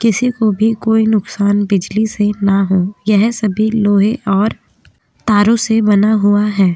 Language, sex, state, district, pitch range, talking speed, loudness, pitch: Hindi, female, Uttar Pradesh, Jyotiba Phule Nagar, 200-220 Hz, 160 wpm, -14 LUFS, 210 Hz